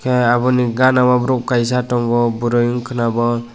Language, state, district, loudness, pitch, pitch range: Kokborok, Tripura, West Tripura, -16 LUFS, 120 Hz, 120-125 Hz